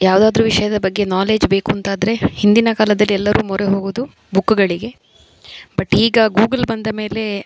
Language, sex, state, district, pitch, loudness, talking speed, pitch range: Kannada, female, Karnataka, Dakshina Kannada, 210 Hz, -16 LUFS, 135 wpm, 195-220 Hz